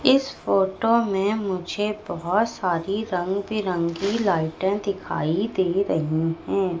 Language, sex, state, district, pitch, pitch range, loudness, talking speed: Hindi, female, Madhya Pradesh, Katni, 195 Hz, 175-210 Hz, -24 LUFS, 105 wpm